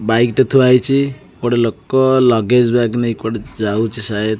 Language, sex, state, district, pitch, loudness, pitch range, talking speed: Odia, male, Odisha, Khordha, 120 Hz, -15 LUFS, 110-130 Hz, 165 wpm